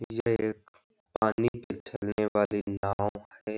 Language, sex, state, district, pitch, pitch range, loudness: Hindi, male, Uttar Pradesh, Hamirpur, 105 Hz, 105-115 Hz, -30 LUFS